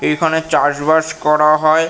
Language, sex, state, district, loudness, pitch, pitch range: Bengali, male, West Bengal, North 24 Parganas, -14 LUFS, 155 Hz, 150-160 Hz